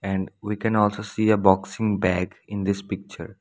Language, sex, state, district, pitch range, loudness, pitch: English, male, Assam, Sonitpur, 95-105 Hz, -24 LUFS, 100 Hz